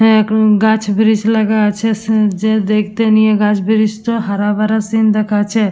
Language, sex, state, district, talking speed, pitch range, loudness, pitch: Bengali, female, West Bengal, Dakshin Dinajpur, 170 wpm, 210-220 Hz, -13 LUFS, 215 Hz